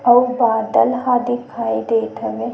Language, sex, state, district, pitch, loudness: Chhattisgarhi, female, Chhattisgarh, Sukma, 235 Hz, -18 LUFS